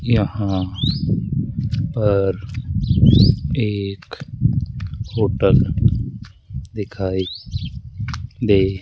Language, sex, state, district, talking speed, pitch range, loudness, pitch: Hindi, male, Rajasthan, Jaipur, 50 wpm, 100-125 Hz, -20 LUFS, 110 Hz